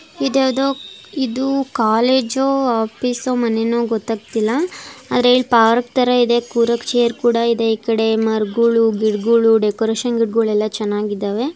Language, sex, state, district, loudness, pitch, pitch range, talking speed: Kannada, female, Karnataka, Dakshina Kannada, -17 LUFS, 235 Hz, 225-250 Hz, 110 wpm